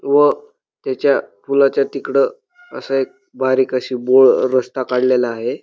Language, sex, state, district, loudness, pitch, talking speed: Marathi, male, Maharashtra, Dhule, -17 LUFS, 130 Hz, 130 wpm